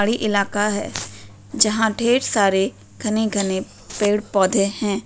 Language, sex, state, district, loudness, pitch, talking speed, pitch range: Hindi, female, West Bengal, Purulia, -20 LUFS, 205 Hz, 120 wpm, 190-215 Hz